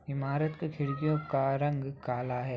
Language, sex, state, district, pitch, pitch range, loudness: Hindi, male, Bihar, Saran, 140 Hz, 135-150 Hz, -32 LUFS